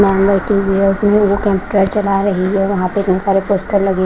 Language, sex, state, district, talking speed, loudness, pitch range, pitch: Hindi, female, Punjab, Kapurthala, 105 wpm, -14 LUFS, 195-200 Hz, 195 Hz